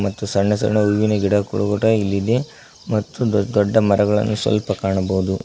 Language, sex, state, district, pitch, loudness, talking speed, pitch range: Kannada, male, Karnataka, Koppal, 105 Hz, -19 LUFS, 130 wpm, 100-110 Hz